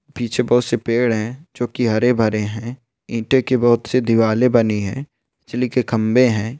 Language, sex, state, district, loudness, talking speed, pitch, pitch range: Hindi, male, Rajasthan, Churu, -18 LUFS, 190 wpm, 120 Hz, 110-125 Hz